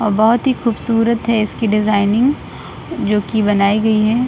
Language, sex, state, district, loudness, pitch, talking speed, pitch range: Hindi, female, Bihar, Saran, -15 LUFS, 220 Hz, 170 wpm, 210-235 Hz